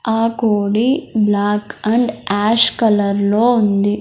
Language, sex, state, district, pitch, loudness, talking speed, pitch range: Telugu, male, Andhra Pradesh, Sri Satya Sai, 215 Hz, -15 LUFS, 120 wpm, 205-230 Hz